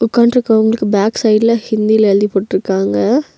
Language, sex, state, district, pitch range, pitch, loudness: Tamil, female, Tamil Nadu, Nilgiris, 200-230 Hz, 220 Hz, -13 LUFS